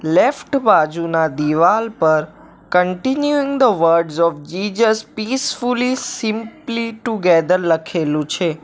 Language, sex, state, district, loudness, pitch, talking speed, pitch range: Gujarati, male, Gujarat, Valsad, -17 LUFS, 185 Hz, 105 wpm, 165-245 Hz